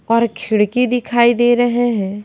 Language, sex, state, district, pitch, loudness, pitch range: Hindi, female, Bihar, West Champaran, 235 Hz, -15 LUFS, 215-240 Hz